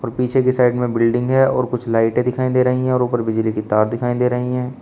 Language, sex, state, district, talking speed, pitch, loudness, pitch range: Hindi, male, Uttar Pradesh, Shamli, 300 wpm, 125 Hz, -18 LUFS, 115-125 Hz